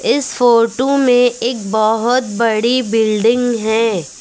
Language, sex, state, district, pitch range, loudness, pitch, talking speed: Hindi, female, Uttar Pradesh, Lucknow, 220-245 Hz, -14 LUFS, 235 Hz, 115 wpm